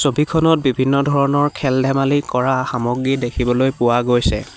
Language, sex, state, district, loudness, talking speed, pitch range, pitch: Assamese, male, Assam, Hailakandi, -17 LUFS, 120 wpm, 125-140 Hz, 130 Hz